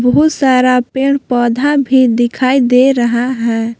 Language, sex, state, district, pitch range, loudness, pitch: Hindi, female, Jharkhand, Palamu, 240-270 Hz, -12 LUFS, 255 Hz